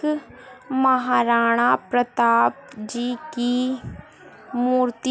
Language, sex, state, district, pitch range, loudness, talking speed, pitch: Hindi, female, Bihar, Gaya, 235-260 Hz, -21 LUFS, 70 wpm, 245 Hz